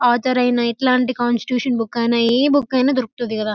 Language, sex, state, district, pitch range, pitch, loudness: Telugu, female, Telangana, Karimnagar, 235-255 Hz, 245 Hz, -18 LUFS